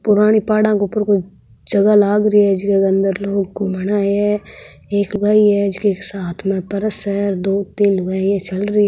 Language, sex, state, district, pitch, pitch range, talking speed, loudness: Marwari, female, Rajasthan, Nagaur, 200 Hz, 195-210 Hz, 195 wpm, -16 LUFS